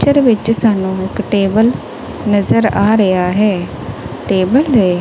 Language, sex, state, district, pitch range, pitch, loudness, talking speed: Punjabi, female, Punjab, Kapurthala, 190-225 Hz, 210 Hz, -13 LUFS, 130 wpm